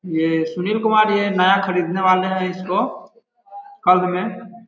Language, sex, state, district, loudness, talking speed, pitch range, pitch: Hindi, male, Bihar, Sitamarhi, -18 LUFS, 155 wpm, 180-220 Hz, 190 Hz